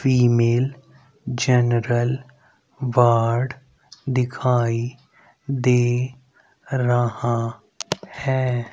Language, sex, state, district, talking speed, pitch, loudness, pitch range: Hindi, male, Haryana, Rohtak, 50 wpm, 125 Hz, -21 LUFS, 120-130 Hz